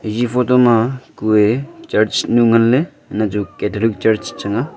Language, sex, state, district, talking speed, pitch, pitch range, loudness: Wancho, male, Arunachal Pradesh, Longding, 175 wpm, 115 Hz, 105-125 Hz, -16 LUFS